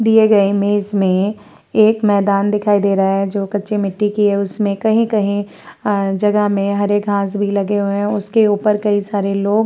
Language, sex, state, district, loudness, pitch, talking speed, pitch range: Hindi, female, Uttar Pradesh, Varanasi, -16 LUFS, 205 Hz, 185 wpm, 200-210 Hz